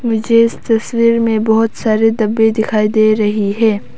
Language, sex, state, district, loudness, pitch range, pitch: Hindi, female, Arunachal Pradesh, Papum Pare, -13 LUFS, 215-230 Hz, 220 Hz